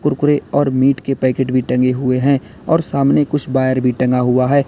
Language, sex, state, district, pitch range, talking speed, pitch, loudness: Hindi, male, Uttar Pradesh, Lalitpur, 130-140 Hz, 220 wpm, 130 Hz, -16 LUFS